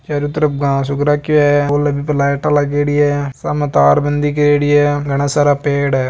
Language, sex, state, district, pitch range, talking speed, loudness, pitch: Marwari, male, Rajasthan, Nagaur, 140-145 Hz, 195 wpm, -14 LUFS, 145 Hz